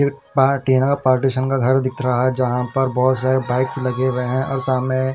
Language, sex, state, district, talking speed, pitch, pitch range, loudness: Hindi, male, Punjab, Fazilka, 220 wpm, 130 Hz, 130-135 Hz, -18 LUFS